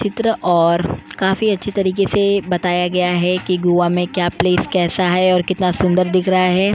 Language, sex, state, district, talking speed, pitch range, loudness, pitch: Hindi, female, Goa, North and South Goa, 195 wpm, 180-190 Hz, -16 LUFS, 180 Hz